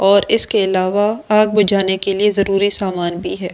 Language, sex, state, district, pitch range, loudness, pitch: Hindi, female, Delhi, New Delhi, 190-210 Hz, -16 LUFS, 200 Hz